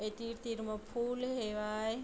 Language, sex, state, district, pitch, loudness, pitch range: Chhattisgarhi, female, Chhattisgarh, Bilaspur, 225 Hz, -38 LUFS, 215-240 Hz